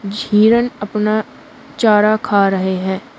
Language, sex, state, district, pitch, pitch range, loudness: Hindi, female, Uttar Pradesh, Shamli, 210 Hz, 200-220 Hz, -15 LUFS